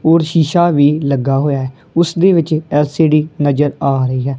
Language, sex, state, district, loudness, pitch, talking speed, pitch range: Punjabi, female, Punjab, Kapurthala, -14 LUFS, 150 Hz, 190 wpm, 140-160 Hz